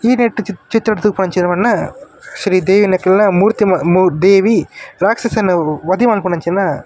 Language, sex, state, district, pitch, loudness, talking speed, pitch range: Tulu, male, Karnataka, Dakshina Kannada, 195 Hz, -13 LUFS, 130 wpm, 185-215 Hz